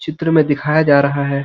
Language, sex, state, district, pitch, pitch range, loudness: Hindi, male, Uttarakhand, Uttarkashi, 145 Hz, 140-155 Hz, -14 LUFS